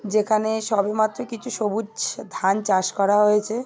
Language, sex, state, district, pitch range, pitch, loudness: Bengali, female, West Bengal, Paschim Medinipur, 205-220 Hz, 215 Hz, -22 LUFS